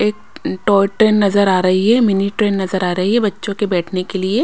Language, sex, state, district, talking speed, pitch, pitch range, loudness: Hindi, female, Haryana, Rohtak, 255 wpm, 200 Hz, 190-210 Hz, -16 LUFS